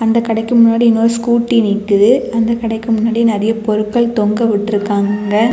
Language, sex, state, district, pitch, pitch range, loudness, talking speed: Tamil, female, Tamil Nadu, Kanyakumari, 225 Hz, 210-230 Hz, -13 LUFS, 130 wpm